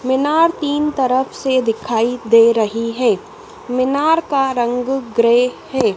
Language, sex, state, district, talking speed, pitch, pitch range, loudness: Hindi, female, Madhya Pradesh, Dhar, 130 wpm, 260 Hz, 240-295 Hz, -16 LUFS